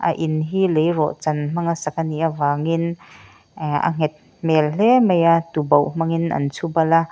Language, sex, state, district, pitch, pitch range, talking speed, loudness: Mizo, female, Mizoram, Aizawl, 160 Hz, 150-170 Hz, 170 wpm, -19 LUFS